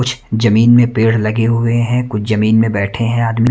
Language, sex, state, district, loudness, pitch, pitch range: Hindi, male, Haryana, Rohtak, -13 LUFS, 115 Hz, 110-120 Hz